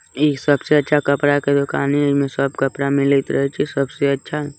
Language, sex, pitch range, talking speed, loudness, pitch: Bajjika, male, 140-145 Hz, 210 wpm, -18 LUFS, 140 Hz